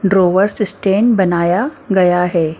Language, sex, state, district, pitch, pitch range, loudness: Hindi, female, Maharashtra, Mumbai Suburban, 190 Hz, 180-205 Hz, -14 LUFS